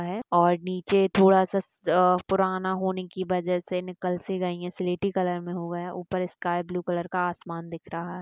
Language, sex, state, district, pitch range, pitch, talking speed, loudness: Hindi, female, Bihar, Bhagalpur, 175-185 Hz, 180 Hz, 210 wpm, -26 LUFS